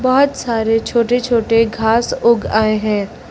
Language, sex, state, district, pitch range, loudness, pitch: Hindi, female, Uttar Pradesh, Lucknow, 220-240 Hz, -15 LUFS, 230 Hz